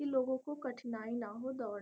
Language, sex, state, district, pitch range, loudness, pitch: Hindi, female, Bihar, Gopalganj, 230-260 Hz, -40 LUFS, 250 Hz